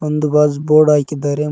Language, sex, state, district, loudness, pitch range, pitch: Kannada, male, Karnataka, Koppal, -14 LUFS, 145-150 Hz, 150 Hz